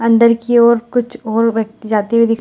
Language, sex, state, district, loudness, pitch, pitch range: Hindi, female, Bihar, Gaya, -14 LUFS, 230 Hz, 225-235 Hz